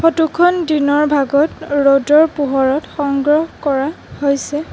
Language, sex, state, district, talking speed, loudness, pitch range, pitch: Assamese, female, Assam, Sonitpur, 115 wpm, -15 LUFS, 280-315 Hz, 295 Hz